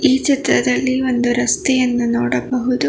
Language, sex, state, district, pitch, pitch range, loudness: Kannada, female, Karnataka, Bangalore, 245 Hz, 235-260 Hz, -17 LUFS